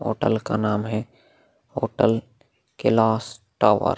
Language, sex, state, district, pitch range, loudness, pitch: Hindi, male, Bihar, Vaishali, 110-115 Hz, -23 LUFS, 110 Hz